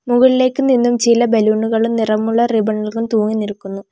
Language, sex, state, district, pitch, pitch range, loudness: Malayalam, female, Kerala, Kollam, 225 Hz, 215-240 Hz, -15 LUFS